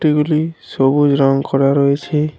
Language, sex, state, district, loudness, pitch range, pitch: Bengali, male, West Bengal, Alipurduar, -15 LUFS, 135-150 Hz, 145 Hz